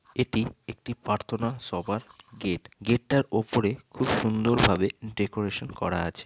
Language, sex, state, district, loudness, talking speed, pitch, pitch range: Bengali, male, West Bengal, North 24 Parganas, -28 LUFS, 135 wpm, 110 Hz, 105-120 Hz